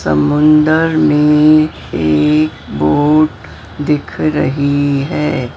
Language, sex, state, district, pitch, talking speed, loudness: Hindi, female, Maharashtra, Mumbai Suburban, 140 Hz, 75 wpm, -12 LUFS